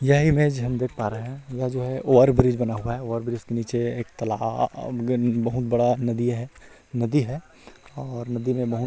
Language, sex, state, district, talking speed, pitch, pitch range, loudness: Hindi, male, Chhattisgarh, Rajnandgaon, 230 wpm, 120 Hz, 120-130 Hz, -24 LUFS